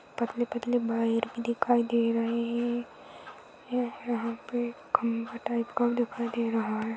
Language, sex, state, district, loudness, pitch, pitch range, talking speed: Hindi, female, Uttar Pradesh, Jyotiba Phule Nagar, -30 LUFS, 235 Hz, 230-240 Hz, 145 wpm